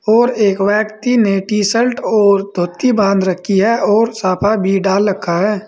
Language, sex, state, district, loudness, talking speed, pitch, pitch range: Hindi, male, Uttar Pradesh, Saharanpur, -14 LUFS, 180 wpm, 205 Hz, 195-220 Hz